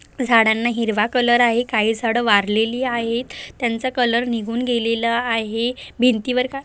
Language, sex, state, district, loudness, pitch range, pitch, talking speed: Marathi, female, Maharashtra, Aurangabad, -19 LUFS, 225-245 Hz, 235 Hz, 135 wpm